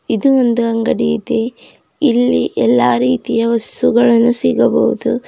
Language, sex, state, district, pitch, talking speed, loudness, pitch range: Kannada, female, Karnataka, Bidar, 235 Hz, 100 wpm, -14 LUFS, 225-240 Hz